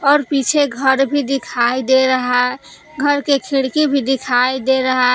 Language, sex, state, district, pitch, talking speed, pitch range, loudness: Hindi, female, Jharkhand, Palamu, 265 Hz, 165 wpm, 255-280 Hz, -16 LUFS